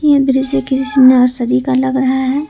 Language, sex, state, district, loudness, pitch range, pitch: Hindi, female, Jharkhand, Ranchi, -12 LUFS, 260-275 Hz, 265 Hz